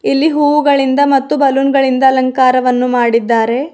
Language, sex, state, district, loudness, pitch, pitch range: Kannada, female, Karnataka, Bidar, -12 LUFS, 265 Hz, 250-280 Hz